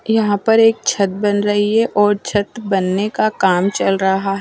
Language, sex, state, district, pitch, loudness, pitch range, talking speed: Hindi, female, Chandigarh, Chandigarh, 205 Hz, -16 LUFS, 195-220 Hz, 205 wpm